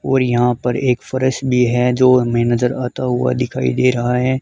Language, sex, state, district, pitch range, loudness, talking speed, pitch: Hindi, male, Haryana, Charkhi Dadri, 120-130 Hz, -16 LUFS, 215 wpm, 125 Hz